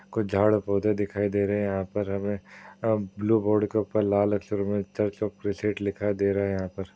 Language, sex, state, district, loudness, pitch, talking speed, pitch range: Hindi, male, Uttar Pradesh, Hamirpur, -27 LUFS, 100 Hz, 235 wpm, 100-105 Hz